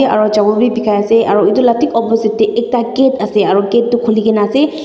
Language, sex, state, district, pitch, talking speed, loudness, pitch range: Nagamese, female, Nagaland, Dimapur, 230 Hz, 245 wpm, -12 LUFS, 215-240 Hz